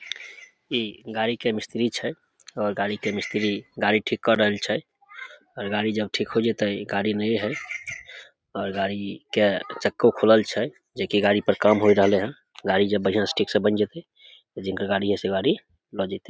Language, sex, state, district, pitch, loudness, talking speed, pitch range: Maithili, male, Bihar, Samastipur, 105 Hz, -24 LUFS, 190 wpm, 100-110 Hz